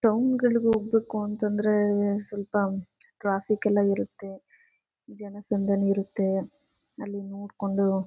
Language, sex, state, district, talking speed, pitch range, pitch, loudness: Kannada, female, Karnataka, Chamarajanagar, 95 wpm, 200-215 Hz, 205 Hz, -27 LUFS